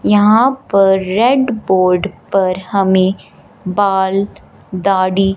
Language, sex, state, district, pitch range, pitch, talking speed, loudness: Hindi, female, Punjab, Fazilka, 185-205 Hz, 195 Hz, 90 wpm, -14 LUFS